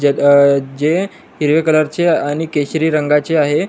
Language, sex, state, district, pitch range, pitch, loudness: Marathi, male, Maharashtra, Nagpur, 145-160 Hz, 150 Hz, -14 LUFS